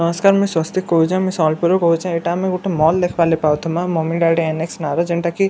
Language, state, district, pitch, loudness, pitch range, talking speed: Sambalpuri, Odisha, Sambalpur, 170 Hz, -17 LUFS, 165-185 Hz, 240 wpm